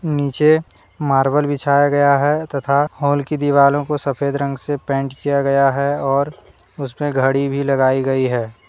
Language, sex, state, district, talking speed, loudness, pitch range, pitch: Hindi, male, Jharkhand, Deoghar, 165 wpm, -17 LUFS, 135-145 Hz, 140 Hz